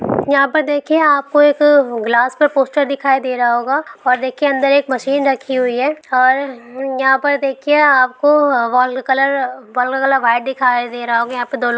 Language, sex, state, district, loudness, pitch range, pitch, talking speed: Hindi, female, Bihar, Lakhisarai, -14 LUFS, 250-285 Hz, 265 Hz, 180 wpm